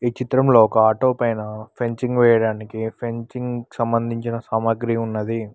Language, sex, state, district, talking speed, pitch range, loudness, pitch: Telugu, male, Telangana, Mahabubabad, 120 wpm, 110-120 Hz, -20 LUFS, 115 Hz